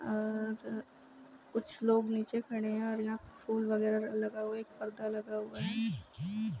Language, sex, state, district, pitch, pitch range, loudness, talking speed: Hindi, female, Bihar, Gopalganj, 215 Hz, 215-220 Hz, -36 LUFS, 180 wpm